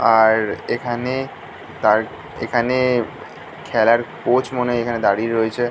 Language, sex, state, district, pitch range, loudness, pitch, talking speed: Bengali, male, West Bengal, North 24 Parganas, 115-125 Hz, -19 LUFS, 120 Hz, 115 wpm